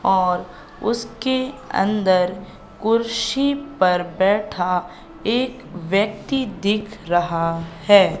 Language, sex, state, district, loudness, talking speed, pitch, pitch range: Hindi, female, Madhya Pradesh, Katni, -20 LUFS, 80 wpm, 200 Hz, 180-230 Hz